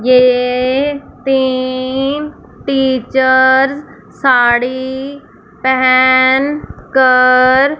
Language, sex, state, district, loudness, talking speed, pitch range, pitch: Hindi, female, Punjab, Fazilka, -12 LUFS, 45 wpm, 255-270 Hz, 260 Hz